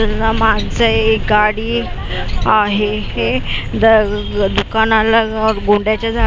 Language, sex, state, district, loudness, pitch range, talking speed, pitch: Marathi, female, Maharashtra, Mumbai Suburban, -15 LUFS, 210-220 Hz, 85 wpm, 220 Hz